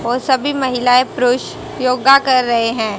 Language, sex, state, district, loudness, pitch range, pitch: Hindi, female, Haryana, Jhajjar, -14 LUFS, 240-265 Hz, 255 Hz